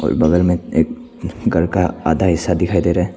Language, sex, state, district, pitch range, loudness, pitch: Hindi, male, Arunachal Pradesh, Papum Pare, 85-95 Hz, -17 LUFS, 90 Hz